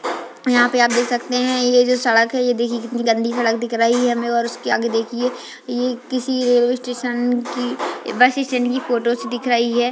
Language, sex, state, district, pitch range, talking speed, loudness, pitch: Hindi, female, Bihar, Madhepura, 235-250 Hz, 205 wpm, -18 LUFS, 245 Hz